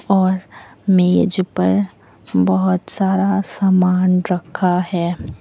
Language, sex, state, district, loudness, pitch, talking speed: Hindi, female, Uttar Pradesh, Lucknow, -17 LUFS, 180 Hz, 90 wpm